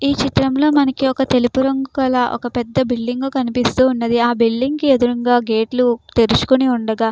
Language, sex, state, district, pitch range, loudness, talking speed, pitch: Telugu, female, Andhra Pradesh, Krishna, 240-265 Hz, -16 LUFS, 145 wpm, 250 Hz